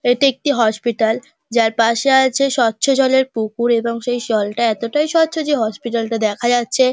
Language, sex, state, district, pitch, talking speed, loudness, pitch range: Bengali, female, West Bengal, Dakshin Dinajpur, 240 Hz, 165 wpm, -17 LUFS, 230-265 Hz